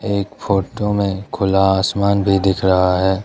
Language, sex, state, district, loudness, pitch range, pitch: Hindi, male, Arunachal Pradesh, Lower Dibang Valley, -17 LUFS, 95-100 Hz, 95 Hz